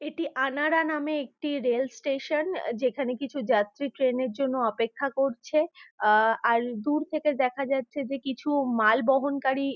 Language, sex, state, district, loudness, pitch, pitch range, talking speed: Bengali, female, West Bengal, Purulia, -27 LUFS, 275 Hz, 250-295 Hz, 145 wpm